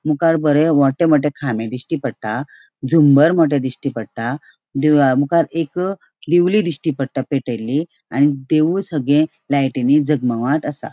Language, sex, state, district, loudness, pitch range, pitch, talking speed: Konkani, female, Goa, North and South Goa, -17 LUFS, 135-160 Hz, 145 Hz, 130 wpm